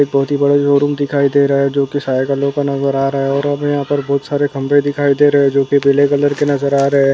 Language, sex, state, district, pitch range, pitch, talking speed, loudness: Hindi, male, Uttar Pradesh, Jalaun, 140-145 Hz, 140 Hz, 285 wpm, -14 LUFS